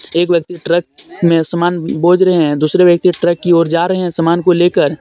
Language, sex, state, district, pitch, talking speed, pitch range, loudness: Hindi, male, Jharkhand, Deoghar, 170 Hz, 225 wpm, 165-175 Hz, -13 LUFS